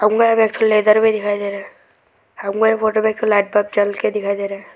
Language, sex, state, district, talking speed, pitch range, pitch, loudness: Hindi, male, Arunachal Pradesh, Lower Dibang Valley, 305 wpm, 205-220 Hz, 210 Hz, -17 LUFS